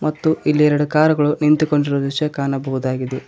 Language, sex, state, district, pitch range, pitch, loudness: Kannada, male, Karnataka, Koppal, 140-150 Hz, 150 Hz, -17 LUFS